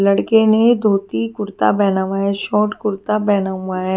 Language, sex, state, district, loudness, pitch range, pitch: Hindi, female, Himachal Pradesh, Shimla, -17 LUFS, 190-210 Hz, 200 Hz